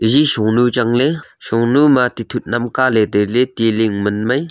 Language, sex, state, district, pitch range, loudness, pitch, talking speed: Wancho, male, Arunachal Pradesh, Longding, 110-130 Hz, -15 LUFS, 120 Hz, 160 wpm